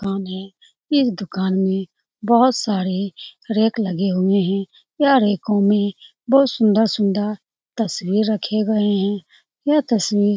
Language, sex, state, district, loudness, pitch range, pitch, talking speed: Hindi, female, Bihar, Saran, -19 LUFS, 195-225 Hz, 205 Hz, 135 wpm